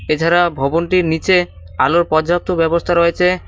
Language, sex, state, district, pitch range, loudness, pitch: Bengali, male, West Bengal, Cooch Behar, 160-175 Hz, -15 LUFS, 170 Hz